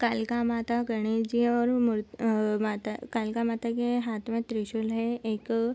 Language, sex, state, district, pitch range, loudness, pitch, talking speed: Hindi, female, Bihar, Sitamarhi, 220-235 Hz, -29 LUFS, 230 Hz, 135 wpm